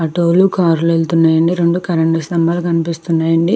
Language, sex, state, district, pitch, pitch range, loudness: Telugu, female, Andhra Pradesh, Krishna, 165 Hz, 165-175 Hz, -14 LUFS